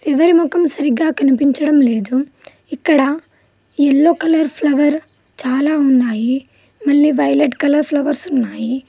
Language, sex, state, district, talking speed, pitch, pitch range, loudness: Telugu, female, Telangana, Mahabubabad, 110 wpm, 285 Hz, 270-300 Hz, -15 LUFS